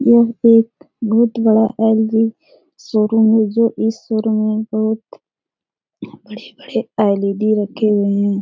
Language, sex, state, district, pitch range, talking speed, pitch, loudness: Hindi, female, Bihar, Jahanabad, 215-225 Hz, 130 wpm, 220 Hz, -16 LUFS